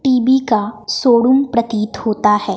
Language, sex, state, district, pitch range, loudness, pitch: Hindi, female, Bihar, West Champaran, 210-255 Hz, -15 LUFS, 230 Hz